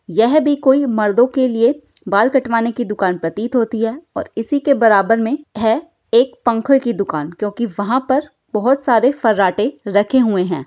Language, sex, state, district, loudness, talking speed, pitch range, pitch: Hindi, female, Bihar, Saharsa, -16 LUFS, 180 wpm, 215-270 Hz, 235 Hz